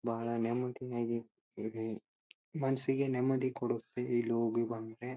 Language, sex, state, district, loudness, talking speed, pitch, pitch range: Kannada, male, Karnataka, Dharwad, -36 LUFS, 115 wpm, 120 Hz, 115-130 Hz